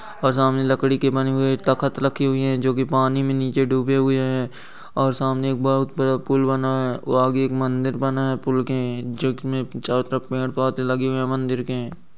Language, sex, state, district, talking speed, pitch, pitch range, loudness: Hindi, male, Bihar, Bhagalpur, 165 wpm, 130 Hz, 130-135 Hz, -21 LUFS